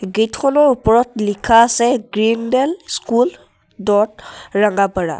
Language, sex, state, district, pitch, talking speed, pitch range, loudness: Assamese, male, Assam, Sonitpur, 220 Hz, 105 wpm, 200-240 Hz, -16 LUFS